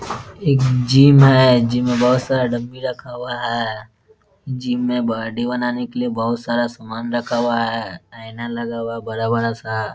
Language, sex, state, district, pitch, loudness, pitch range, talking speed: Hindi, male, Bihar, Muzaffarpur, 120 Hz, -18 LUFS, 115-125 Hz, 185 wpm